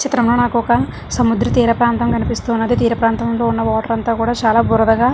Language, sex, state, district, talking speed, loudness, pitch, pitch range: Telugu, female, Andhra Pradesh, Srikakulam, 210 wpm, -16 LUFS, 235 Hz, 230-240 Hz